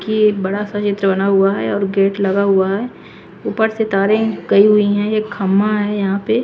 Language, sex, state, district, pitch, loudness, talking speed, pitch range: Hindi, female, Haryana, Charkhi Dadri, 205 Hz, -16 LUFS, 225 wpm, 195-215 Hz